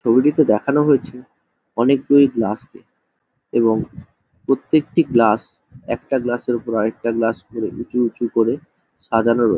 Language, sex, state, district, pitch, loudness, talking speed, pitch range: Bengali, male, West Bengal, Jhargram, 120 Hz, -19 LUFS, 130 wpm, 115-135 Hz